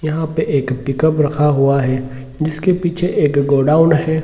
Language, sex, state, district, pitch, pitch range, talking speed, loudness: Hindi, male, Bihar, Sitamarhi, 150 Hz, 135-160 Hz, 170 wpm, -16 LUFS